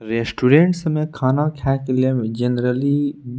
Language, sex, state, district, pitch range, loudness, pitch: Maithili, male, Bihar, Purnia, 125-145 Hz, -19 LUFS, 130 Hz